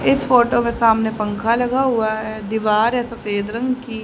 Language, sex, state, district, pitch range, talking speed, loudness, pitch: Hindi, female, Haryana, Jhajjar, 215-240 Hz, 195 wpm, -18 LUFS, 225 Hz